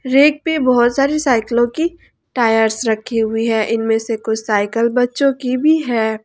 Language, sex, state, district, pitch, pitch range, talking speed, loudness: Hindi, female, Jharkhand, Ranchi, 235 Hz, 225-275 Hz, 175 wpm, -16 LUFS